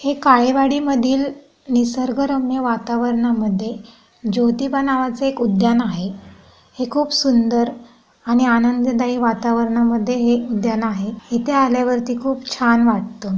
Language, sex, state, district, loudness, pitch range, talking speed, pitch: Marathi, female, Maharashtra, Pune, -18 LUFS, 230-260 Hz, 110 wpm, 240 Hz